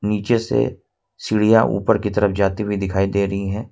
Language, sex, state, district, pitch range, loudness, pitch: Hindi, male, Jharkhand, Ranchi, 100-110 Hz, -19 LUFS, 105 Hz